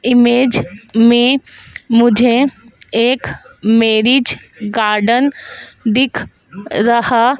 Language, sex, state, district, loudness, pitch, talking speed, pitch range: Hindi, female, Madhya Pradesh, Dhar, -13 LUFS, 235 Hz, 65 wpm, 220-245 Hz